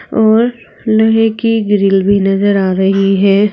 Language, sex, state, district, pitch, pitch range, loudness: Hindi, female, Uttar Pradesh, Saharanpur, 205 Hz, 195-220 Hz, -11 LUFS